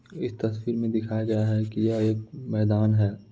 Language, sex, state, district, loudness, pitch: Hindi, male, Bihar, Muzaffarpur, -26 LUFS, 110 Hz